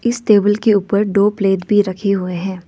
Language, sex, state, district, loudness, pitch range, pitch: Hindi, female, Arunachal Pradesh, Lower Dibang Valley, -15 LUFS, 190-210 Hz, 200 Hz